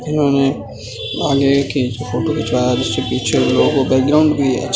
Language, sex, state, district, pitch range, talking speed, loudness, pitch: Hindi, male, Uttar Pradesh, Budaun, 125-140 Hz, 125 wpm, -16 LUFS, 135 Hz